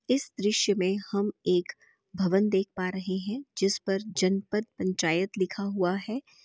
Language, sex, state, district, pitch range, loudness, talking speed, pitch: Hindi, female, Chhattisgarh, Bastar, 185-210 Hz, -28 LUFS, 160 wpm, 195 Hz